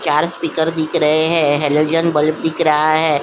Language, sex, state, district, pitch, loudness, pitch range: Hindi, female, Uttar Pradesh, Jyotiba Phule Nagar, 155 Hz, -15 LUFS, 150-165 Hz